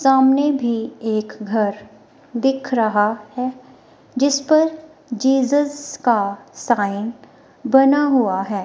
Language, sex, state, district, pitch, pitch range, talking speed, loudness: Hindi, female, Himachal Pradesh, Shimla, 255 Hz, 215-280 Hz, 105 wpm, -19 LUFS